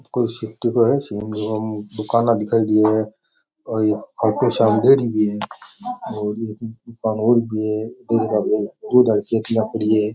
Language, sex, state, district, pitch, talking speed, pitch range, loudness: Rajasthani, male, Rajasthan, Nagaur, 110 Hz, 125 wpm, 105-115 Hz, -20 LUFS